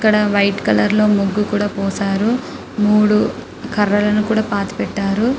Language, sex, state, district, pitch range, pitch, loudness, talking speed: Telugu, female, Telangana, Karimnagar, 200-210 Hz, 210 Hz, -17 LUFS, 135 wpm